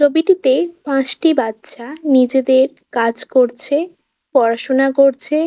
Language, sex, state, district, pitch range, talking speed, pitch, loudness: Bengali, female, West Bengal, Kolkata, 255-295 Hz, 100 wpm, 270 Hz, -15 LUFS